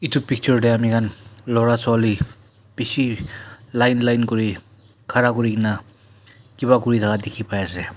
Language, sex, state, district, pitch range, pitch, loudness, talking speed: Nagamese, male, Nagaland, Dimapur, 105-120 Hz, 115 Hz, -20 LUFS, 130 wpm